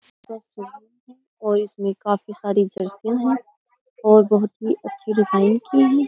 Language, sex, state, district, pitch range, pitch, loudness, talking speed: Hindi, female, Uttar Pradesh, Jyotiba Phule Nagar, 205-250 Hz, 215 Hz, -20 LUFS, 110 wpm